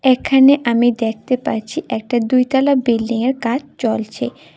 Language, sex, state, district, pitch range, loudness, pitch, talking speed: Bengali, female, Tripura, West Tripura, 230-265 Hz, -17 LUFS, 245 Hz, 120 wpm